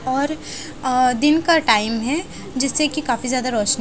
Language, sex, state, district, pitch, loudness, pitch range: Hindi, female, Haryana, Jhajjar, 260 Hz, -19 LUFS, 245-300 Hz